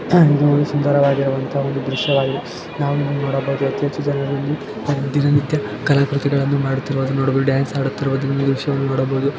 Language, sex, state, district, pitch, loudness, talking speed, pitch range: Kannada, male, Karnataka, Belgaum, 140 Hz, -19 LUFS, 140 wpm, 135-145 Hz